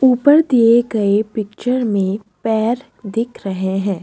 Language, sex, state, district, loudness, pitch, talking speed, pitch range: Hindi, female, Assam, Kamrup Metropolitan, -17 LUFS, 220 Hz, 135 wpm, 200-240 Hz